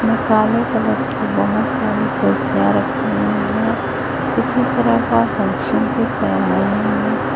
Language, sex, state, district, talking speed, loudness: Hindi, female, Chhattisgarh, Raipur, 140 wpm, -17 LUFS